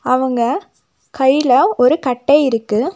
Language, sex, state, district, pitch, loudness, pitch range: Tamil, female, Tamil Nadu, Nilgiris, 265 Hz, -15 LUFS, 250-315 Hz